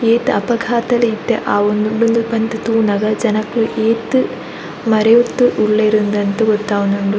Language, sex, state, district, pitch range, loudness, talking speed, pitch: Tulu, female, Karnataka, Dakshina Kannada, 210-230 Hz, -15 LUFS, 110 wpm, 225 Hz